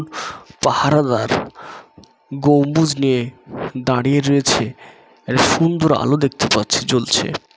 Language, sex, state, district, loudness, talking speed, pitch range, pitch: Bengali, male, West Bengal, Jalpaiguri, -17 LUFS, 85 wpm, 130-145 Hz, 140 Hz